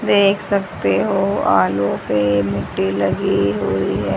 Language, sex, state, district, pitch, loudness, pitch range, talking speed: Hindi, female, Haryana, Rohtak, 100 Hz, -18 LUFS, 95-105 Hz, 130 wpm